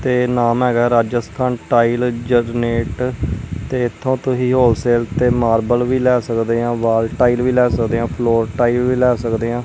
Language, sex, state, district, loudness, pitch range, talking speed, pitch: Punjabi, male, Punjab, Kapurthala, -17 LUFS, 115-125 Hz, 170 wpm, 120 Hz